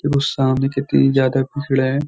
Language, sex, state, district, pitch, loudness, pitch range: Hindi, male, Uttar Pradesh, Jyotiba Phule Nagar, 135 Hz, -18 LUFS, 135-140 Hz